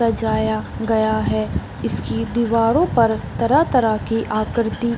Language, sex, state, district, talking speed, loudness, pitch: Hindi, female, Bihar, Supaul, 120 wpm, -19 LUFS, 215 Hz